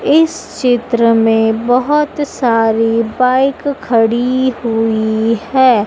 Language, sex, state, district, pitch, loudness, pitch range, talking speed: Hindi, female, Madhya Pradesh, Dhar, 235 Hz, -13 LUFS, 225-260 Hz, 90 wpm